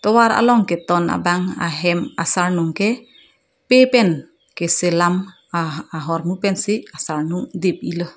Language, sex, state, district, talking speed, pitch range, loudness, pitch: Karbi, female, Assam, Karbi Anglong, 125 wpm, 170-205 Hz, -18 LUFS, 175 Hz